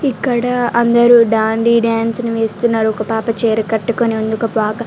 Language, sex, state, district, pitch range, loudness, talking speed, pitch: Telugu, female, Telangana, Karimnagar, 220-235 Hz, -14 LUFS, 150 wpm, 230 Hz